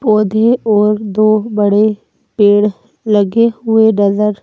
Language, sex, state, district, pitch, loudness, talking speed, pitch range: Hindi, female, Madhya Pradesh, Bhopal, 215 Hz, -12 LUFS, 110 wpm, 205-220 Hz